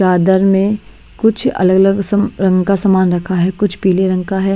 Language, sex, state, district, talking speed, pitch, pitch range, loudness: Hindi, female, Maharashtra, Gondia, 210 wpm, 190 Hz, 185-200 Hz, -14 LUFS